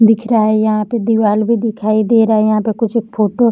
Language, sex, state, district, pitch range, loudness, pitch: Hindi, female, Bihar, Darbhanga, 215-230 Hz, -14 LUFS, 220 Hz